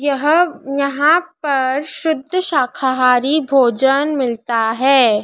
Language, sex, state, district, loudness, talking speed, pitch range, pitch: Hindi, female, Madhya Pradesh, Dhar, -16 LUFS, 90 wpm, 260-305 Hz, 275 Hz